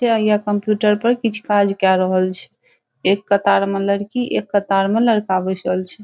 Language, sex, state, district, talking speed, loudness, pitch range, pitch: Maithili, female, Bihar, Saharsa, 190 wpm, -17 LUFS, 195-215 Hz, 200 Hz